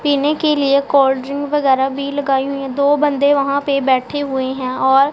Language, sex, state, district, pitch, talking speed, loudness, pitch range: Hindi, female, Punjab, Pathankot, 280 Hz, 210 wpm, -16 LUFS, 270-285 Hz